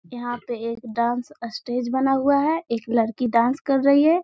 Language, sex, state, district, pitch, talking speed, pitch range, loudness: Hindi, female, Bihar, Gaya, 245 Hz, 200 wpm, 235-275 Hz, -22 LUFS